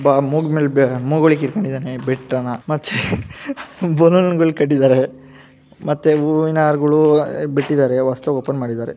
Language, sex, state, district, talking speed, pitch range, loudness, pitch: Kannada, female, Karnataka, Gulbarga, 115 wpm, 130-155 Hz, -17 LUFS, 145 Hz